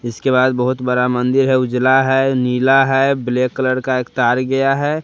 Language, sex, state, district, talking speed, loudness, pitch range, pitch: Hindi, male, Bihar, West Champaran, 200 wpm, -15 LUFS, 125-135 Hz, 130 Hz